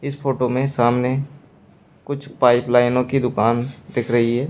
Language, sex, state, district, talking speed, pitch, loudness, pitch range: Hindi, male, Uttar Pradesh, Shamli, 160 wpm, 125 Hz, -19 LUFS, 120-140 Hz